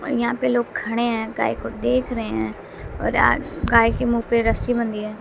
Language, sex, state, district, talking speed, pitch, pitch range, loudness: Hindi, female, Bihar, West Champaran, 230 wpm, 235 Hz, 225-240 Hz, -21 LUFS